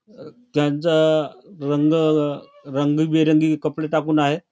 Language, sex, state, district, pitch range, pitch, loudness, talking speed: Marathi, male, Maharashtra, Chandrapur, 145-155 Hz, 155 Hz, -20 LUFS, 80 wpm